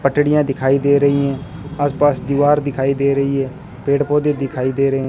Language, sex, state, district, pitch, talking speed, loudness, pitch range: Hindi, male, Rajasthan, Bikaner, 140 Hz, 190 wpm, -17 LUFS, 135-145 Hz